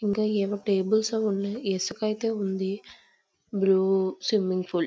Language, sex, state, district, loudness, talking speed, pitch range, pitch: Telugu, female, Andhra Pradesh, Visakhapatnam, -26 LUFS, 125 wpm, 190-215 Hz, 200 Hz